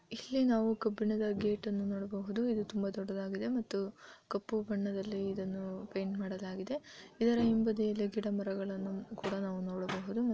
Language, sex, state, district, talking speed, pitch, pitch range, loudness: Kannada, female, Karnataka, Bellary, 130 wpm, 200 Hz, 195-220 Hz, -36 LUFS